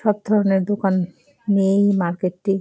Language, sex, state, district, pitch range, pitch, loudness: Bengali, female, West Bengal, Jalpaiguri, 190-205 Hz, 195 Hz, -19 LUFS